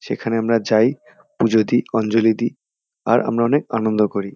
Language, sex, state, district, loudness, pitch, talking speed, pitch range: Bengali, male, West Bengal, Kolkata, -18 LUFS, 115 Hz, 165 wpm, 110-115 Hz